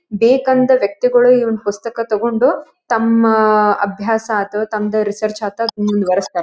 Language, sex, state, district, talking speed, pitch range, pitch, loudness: Kannada, female, Karnataka, Dharwad, 110 wpm, 205-230 Hz, 215 Hz, -15 LUFS